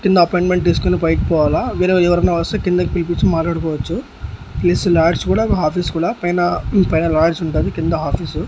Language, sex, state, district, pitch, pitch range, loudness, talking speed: Telugu, male, Andhra Pradesh, Annamaya, 175 Hz, 165-180 Hz, -16 LUFS, 165 wpm